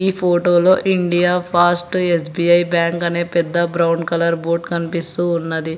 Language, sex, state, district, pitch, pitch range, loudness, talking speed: Telugu, male, Telangana, Hyderabad, 170 Hz, 170-175 Hz, -17 LUFS, 145 wpm